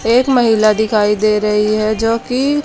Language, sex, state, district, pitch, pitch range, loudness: Hindi, female, Haryana, Charkhi Dadri, 220 Hz, 215-245 Hz, -14 LUFS